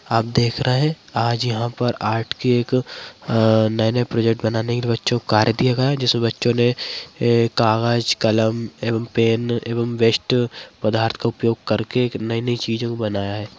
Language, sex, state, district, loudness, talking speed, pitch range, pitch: Hindi, female, Bihar, Madhepura, -20 LUFS, 170 wpm, 110-120 Hz, 115 Hz